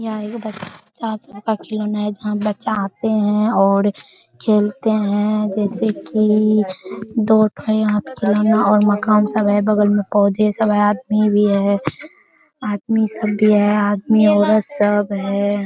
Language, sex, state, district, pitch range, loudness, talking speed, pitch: Hindi, female, Bihar, Araria, 205-215 Hz, -17 LUFS, 150 wpm, 210 Hz